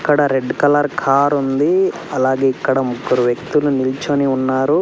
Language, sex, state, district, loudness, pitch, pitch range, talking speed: Telugu, male, Andhra Pradesh, Sri Satya Sai, -16 LUFS, 135 Hz, 130-145 Hz, 135 wpm